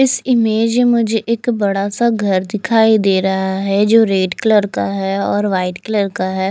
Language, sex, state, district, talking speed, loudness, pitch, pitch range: Hindi, female, Chandigarh, Chandigarh, 195 wpm, -15 LUFS, 205 Hz, 195-225 Hz